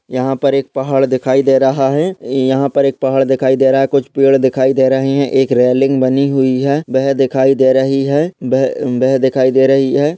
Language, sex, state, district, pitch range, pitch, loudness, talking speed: Hindi, male, Maharashtra, Aurangabad, 130-135 Hz, 135 Hz, -13 LUFS, 220 wpm